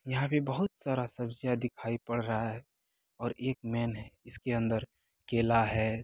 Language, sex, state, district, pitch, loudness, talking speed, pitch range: Hindi, male, Bihar, Begusarai, 120 Hz, -33 LUFS, 170 wpm, 115-130 Hz